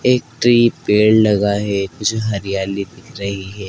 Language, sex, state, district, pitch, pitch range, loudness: Hindi, male, Madhya Pradesh, Dhar, 105 Hz, 100-115 Hz, -16 LUFS